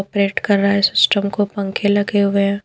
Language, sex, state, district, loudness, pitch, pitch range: Hindi, female, Bihar, Patna, -16 LUFS, 200 Hz, 200-205 Hz